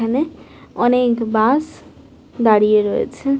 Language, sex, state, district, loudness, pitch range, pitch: Bengali, female, West Bengal, North 24 Parganas, -17 LUFS, 220-275 Hz, 240 Hz